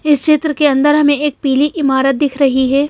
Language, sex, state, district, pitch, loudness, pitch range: Hindi, female, Madhya Pradesh, Bhopal, 290 Hz, -13 LUFS, 275-295 Hz